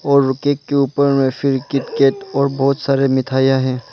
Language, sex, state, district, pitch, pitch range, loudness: Hindi, male, Arunachal Pradesh, Lower Dibang Valley, 135 Hz, 130-140 Hz, -16 LUFS